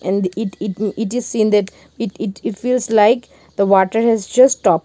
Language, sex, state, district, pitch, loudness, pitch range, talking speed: English, female, Nagaland, Dimapur, 215 Hz, -17 LUFS, 200-230 Hz, 210 wpm